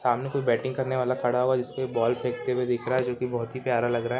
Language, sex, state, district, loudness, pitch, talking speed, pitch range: Hindi, male, Andhra Pradesh, Guntur, -27 LUFS, 125 Hz, 330 wpm, 120-130 Hz